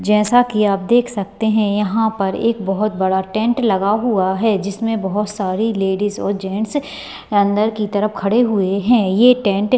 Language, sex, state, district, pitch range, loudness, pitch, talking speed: Hindi, female, Bihar, Madhepura, 195-225 Hz, -17 LUFS, 210 Hz, 180 wpm